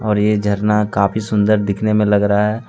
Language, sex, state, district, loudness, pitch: Hindi, male, Jharkhand, Deoghar, -16 LUFS, 105 Hz